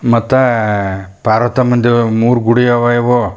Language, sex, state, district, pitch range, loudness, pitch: Kannada, male, Karnataka, Chamarajanagar, 110-120 Hz, -12 LUFS, 120 Hz